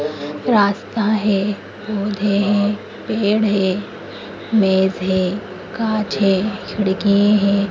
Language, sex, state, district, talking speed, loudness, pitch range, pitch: Bhojpuri, female, Uttar Pradesh, Gorakhpur, 95 wpm, -18 LUFS, 190-210 Hz, 205 Hz